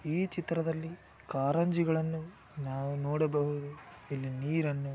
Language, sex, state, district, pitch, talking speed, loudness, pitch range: Kannada, male, Karnataka, Dakshina Kannada, 155 Hz, 75 wpm, -33 LUFS, 140-165 Hz